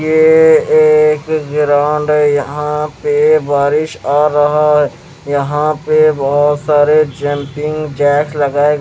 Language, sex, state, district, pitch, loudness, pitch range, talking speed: Hindi, male, Maharashtra, Mumbai Suburban, 150 Hz, -12 LUFS, 145-155 Hz, 115 wpm